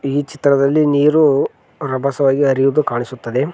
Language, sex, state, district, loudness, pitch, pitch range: Kannada, male, Karnataka, Koppal, -16 LUFS, 140 Hz, 135-145 Hz